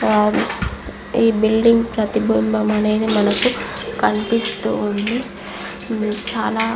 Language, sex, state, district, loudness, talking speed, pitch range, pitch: Telugu, female, Andhra Pradesh, Visakhapatnam, -18 LUFS, 80 wpm, 210-230 Hz, 220 Hz